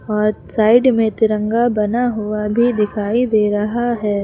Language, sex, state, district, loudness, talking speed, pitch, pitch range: Hindi, female, Uttar Pradesh, Lucknow, -16 LUFS, 155 wpm, 215 Hz, 210-235 Hz